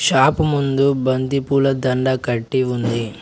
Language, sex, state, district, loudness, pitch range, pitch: Telugu, male, Telangana, Mahabubabad, -18 LUFS, 125-140 Hz, 130 Hz